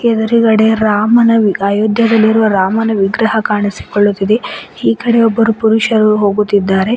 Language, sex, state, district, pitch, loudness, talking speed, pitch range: Kannada, female, Karnataka, Bidar, 220 Hz, -12 LUFS, 105 wpm, 205-225 Hz